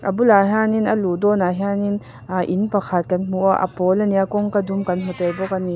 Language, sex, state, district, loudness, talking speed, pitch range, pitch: Mizo, female, Mizoram, Aizawl, -19 LUFS, 250 wpm, 180-205 Hz, 195 Hz